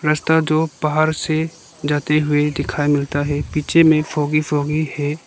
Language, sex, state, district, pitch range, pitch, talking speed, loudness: Hindi, male, Arunachal Pradesh, Lower Dibang Valley, 145-155 Hz, 150 Hz, 160 wpm, -18 LUFS